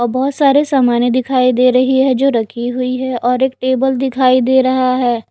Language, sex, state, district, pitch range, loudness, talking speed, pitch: Hindi, female, Odisha, Nuapada, 250-265 Hz, -13 LUFS, 215 wpm, 255 Hz